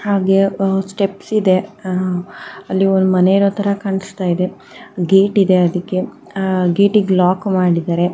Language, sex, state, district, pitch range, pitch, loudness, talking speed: Kannada, female, Karnataka, Mysore, 185-195 Hz, 190 Hz, -16 LUFS, 135 wpm